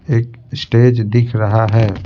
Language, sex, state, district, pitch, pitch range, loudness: Hindi, male, Bihar, Patna, 115 Hz, 110-120 Hz, -14 LUFS